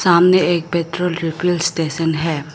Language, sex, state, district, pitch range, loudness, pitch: Hindi, female, Arunachal Pradesh, Lower Dibang Valley, 165-175 Hz, -17 LUFS, 170 Hz